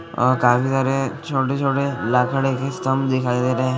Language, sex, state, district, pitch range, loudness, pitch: Hindi, male, Chhattisgarh, Bilaspur, 125-135 Hz, -20 LUFS, 135 Hz